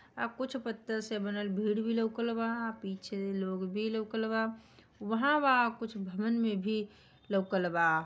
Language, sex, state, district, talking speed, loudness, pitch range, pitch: Bhojpuri, female, Bihar, Gopalganj, 150 wpm, -33 LUFS, 200-230 Hz, 220 Hz